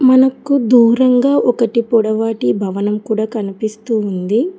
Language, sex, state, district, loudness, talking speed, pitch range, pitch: Telugu, female, Telangana, Hyderabad, -15 LUFS, 105 wpm, 215-250 Hz, 225 Hz